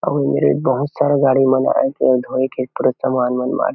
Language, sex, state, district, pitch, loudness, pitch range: Chhattisgarhi, male, Chhattisgarh, Kabirdham, 130 Hz, -17 LUFS, 125-135 Hz